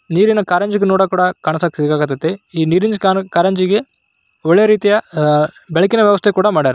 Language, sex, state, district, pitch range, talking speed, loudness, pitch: Kannada, male, Karnataka, Raichur, 165-205 Hz, 125 wpm, -14 LUFS, 190 Hz